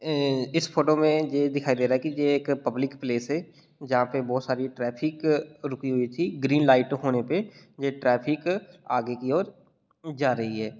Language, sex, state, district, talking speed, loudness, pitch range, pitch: Hindi, male, Bihar, Muzaffarpur, 195 wpm, -26 LUFS, 125-155 Hz, 140 Hz